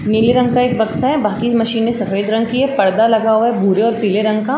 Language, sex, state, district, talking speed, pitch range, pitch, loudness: Hindi, female, Uttar Pradesh, Jalaun, 285 wpm, 215-240 Hz, 225 Hz, -15 LUFS